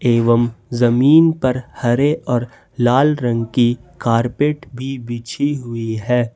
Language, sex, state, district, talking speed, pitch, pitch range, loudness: Hindi, male, Jharkhand, Ranchi, 125 wpm, 120 Hz, 120-135 Hz, -17 LUFS